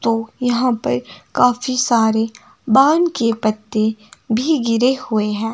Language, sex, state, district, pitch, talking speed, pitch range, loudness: Hindi, female, Himachal Pradesh, Shimla, 230 Hz, 130 wpm, 220-250 Hz, -17 LUFS